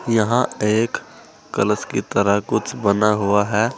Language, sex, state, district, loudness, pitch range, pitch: Hindi, male, Uttar Pradesh, Saharanpur, -19 LUFS, 105-115 Hz, 105 Hz